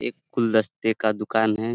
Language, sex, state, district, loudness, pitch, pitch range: Hindi, male, Uttar Pradesh, Deoria, -23 LUFS, 110 Hz, 105-110 Hz